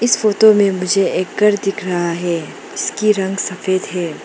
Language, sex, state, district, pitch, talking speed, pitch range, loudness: Hindi, female, Arunachal Pradesh, Lower Dibang Valley, 195 Hz, 185 wpm, 185-210 Hz, -16 LUFS